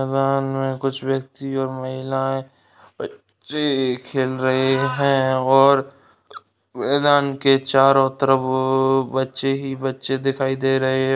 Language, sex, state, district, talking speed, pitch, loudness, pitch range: Hindi, male, Rajasthan, Nagaur, 115 wpm, 135 Hz, -20 LUFS, 130-135 Hz